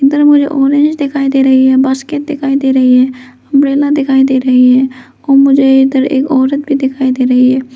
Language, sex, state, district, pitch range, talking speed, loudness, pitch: Hindi, female, Arunachal Pradesh, Lower Dibang Valley, 260-280 Hz, 210 wpm, -10 LUFS, 270 Hz